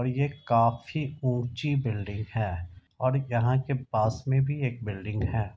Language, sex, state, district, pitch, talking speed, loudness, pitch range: Hindi, male, Bihar, Madhepura, 120 Hz, 160 wpm, -28 LUFS, 110-135 Hz